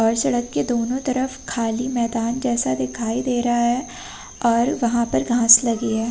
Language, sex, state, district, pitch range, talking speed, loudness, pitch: Hindi, female, Uttar Pradesh, Hamirpur, 230-250 Hz, 175 wpm, -20 LUFS, 235 Hz